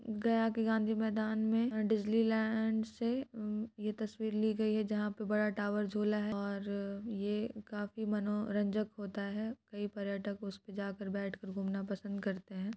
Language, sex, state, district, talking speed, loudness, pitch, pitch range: Hindi, female, Bihar, Gaya, 155 wpm, -36 LUFS, 210 Hz, 200-220 Hz